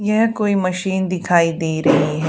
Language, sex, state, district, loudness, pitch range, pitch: Hindi, female, Haryana, Charkhi Dadri, -18 LUFS, 160-200 Hz, 185 Hz